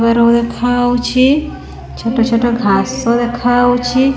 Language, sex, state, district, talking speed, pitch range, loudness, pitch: Odia, female, Odisha, Khordha, 85 wpm, 235-245 Hz, -13 LUFS, 240 Hz